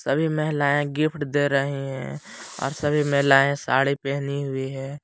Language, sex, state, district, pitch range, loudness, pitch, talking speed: Hindi, male, Jharkhand, Palamu, 135-145 Hz, -23 LUFS, 140 Hz, 155 wpm